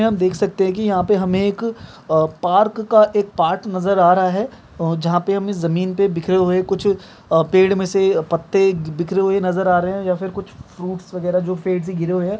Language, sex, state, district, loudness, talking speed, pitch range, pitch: Bhojpuri, male, Bihar, Saran, -18 LUFS, 235 wpm, 180-200 Hz, 185 Hz